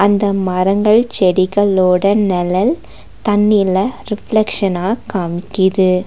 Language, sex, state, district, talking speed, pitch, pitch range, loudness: Tamil, female, Tamil Nadu, Nilgiris, 70 wpm, 195 Hz, 185-210 Hz, -14 LUFS